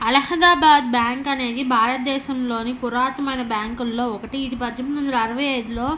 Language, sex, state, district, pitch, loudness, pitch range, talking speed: Telugu, female, Andhra Pradesh, Anantapur, 255 Hz, -20 LUFS, 240-275 Hz, 160 wpm